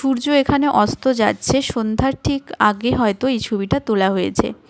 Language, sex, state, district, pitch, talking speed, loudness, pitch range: Bengali, female, West Bengal, Cooch Behar, 245 Hz, 155 wpm, -18 LUFS, 210-270 Hz